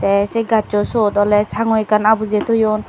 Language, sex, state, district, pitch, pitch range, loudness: Chakma, female, Tripura, Dhalai, 215 Hz, 205-220 Hz, -16 LUFS